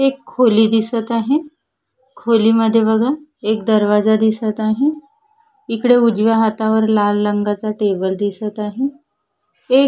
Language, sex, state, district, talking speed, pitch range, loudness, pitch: Marathi, female, Maharashtra, Solapur, 115 wpm, 215-265 Hz, -16 LUFS, 225 Hz